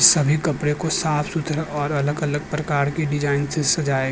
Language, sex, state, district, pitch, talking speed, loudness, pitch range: Hindi, male, Uttar Pradesh, Jyotiba Phule Nagar, 150 Hz, 205 wpm, -21 LUFS, 145-155 Hz